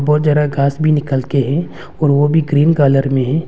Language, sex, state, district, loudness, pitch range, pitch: Hindi, male, Arunachal Pradesh, Longding, -14 LUFS, 140-150 Hz, 145 Hz